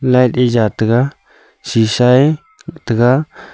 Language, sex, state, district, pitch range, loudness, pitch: Wancho, male, Arunachal Pradesh, Longding, 115-140 Hz, -14 LUFS, 125 Hz